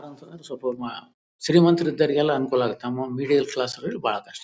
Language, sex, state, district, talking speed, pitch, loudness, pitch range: Kannada, male, Karnataka, Bellary, 110 wpm, 140 Hz, -23 LUFS, 125-155 Hz